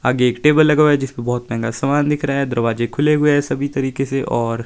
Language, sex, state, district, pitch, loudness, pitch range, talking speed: Hindi, male, Himachal Pradesh, Shimla, 135 Hz, -17 LUFS, 120-145 Hz, 270 wpm